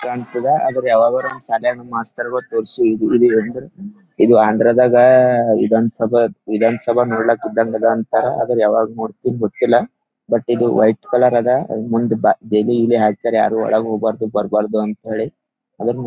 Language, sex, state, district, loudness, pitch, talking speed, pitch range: Kannada, male, Karnataka, Gulbarga, -16 LUFS, 115 Hz, 135 wpm, 110-125 Hz